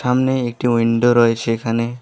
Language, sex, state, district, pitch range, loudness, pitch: Bengali, male, West Bengal, Alipurduar, 115-125 Hz, -17 LUFS, 120 Hz